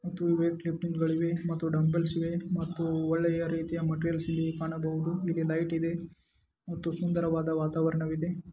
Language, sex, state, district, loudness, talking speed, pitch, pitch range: Kannada, male, Karnataka, Dharwad, -31 LUFS, 135 wpm, 165 Hz, 160-170 Hz